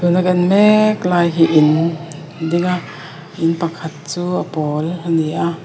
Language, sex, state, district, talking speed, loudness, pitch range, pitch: Mizo, female, Mizoram, Aizawl, 180 wpm, -16 LUFS, 160-180 Hz, 170 Hz